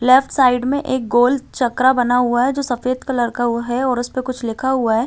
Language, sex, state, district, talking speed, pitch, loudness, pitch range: Hindi, female, Chhattisgarh, Balrampur, 235 wpm, 250 Hz, -17 LUFS, 240-260 Hz